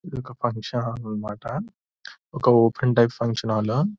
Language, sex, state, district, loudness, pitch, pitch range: Telugu, male, Telangana, Nalgonda, -23 LUFS, 120 Hz, 115-140 Hz